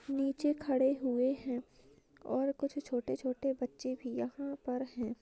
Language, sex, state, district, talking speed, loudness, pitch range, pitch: Hindi, female, Maharashtra, Nagpur, 150 wpm, -36 LUFS, 250-275 Hz, 265 Hz